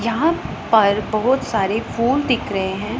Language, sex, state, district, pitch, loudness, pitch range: Hindi, male, Punjab, Pathankot, 225 Hz, -19 LUFS, 210-255 Hz